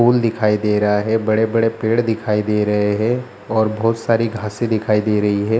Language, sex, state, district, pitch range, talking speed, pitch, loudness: Hindi, male, Bihar, Jahanabad, 105-115 Hz, 235 wpm, 110 Hz, -18 LUFS